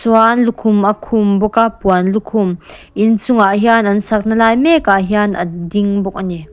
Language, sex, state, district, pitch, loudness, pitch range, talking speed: Mizo, female, Mizoram, Aizawl, 210 Hz, -13 LUFS, 195-225 Hz, 200 wpm